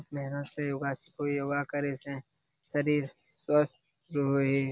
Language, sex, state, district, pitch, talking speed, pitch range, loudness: Hindi, male, Bihar, Jamui, 145 Hz, 165 wpm, 140-145 Hz, -32 LUFS